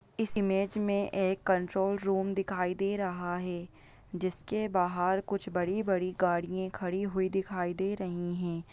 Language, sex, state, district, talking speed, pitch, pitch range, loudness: Hindi, female, Chhattisgarh, Bastar, 145 wpm, 190 Hz, 180-195 Hz, -32 LUFS